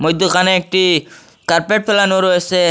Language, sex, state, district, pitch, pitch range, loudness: Bengali, male, Assam, Hailakandi, 185 Hz, 175-190 Hz, -14 LUFS